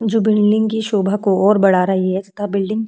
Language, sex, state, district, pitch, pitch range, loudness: Hindi, female, Uttar Pradesh, Jyotiba Phule Nagar, 205 Hz, 195-215 Hz, -16 LUFS